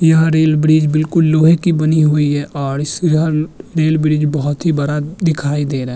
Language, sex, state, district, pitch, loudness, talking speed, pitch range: Hindi, male, Maharashtra, Chandrapur, 155 Hz, -14 LUFS, 200 wpm, 145-160 Hz